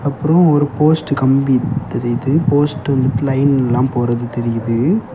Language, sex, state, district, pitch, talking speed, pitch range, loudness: Tamil, male, Tamil Nadu, Kanyakumari, 135 Hz, 130 wpm, 125-150 Hz, -15 LUFS